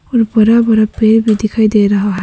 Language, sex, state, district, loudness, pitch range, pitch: Hindi, female, Arunachal Pradesh, Papum Pare, -11 LUFS, 210-225 Hz, 215 Hz